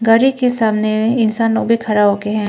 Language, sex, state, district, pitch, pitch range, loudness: Hindi, female, Arunachal Pradesh, Papum Pare, 225 Hz, 215-230 Hz, -15 LUFS